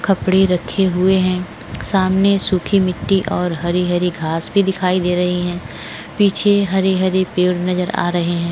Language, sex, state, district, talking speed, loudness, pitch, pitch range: Hindi, female, Goa, North and South Goa, 175 wpm, -17 LUFS, 185 Hz, 180-190 Hz